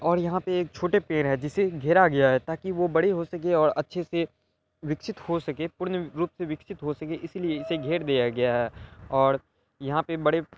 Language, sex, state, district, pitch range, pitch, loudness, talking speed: Hindi, male, Bihar, Araria, 140-175 Hz, 160 Hz, -26 LUFS, 215 wpm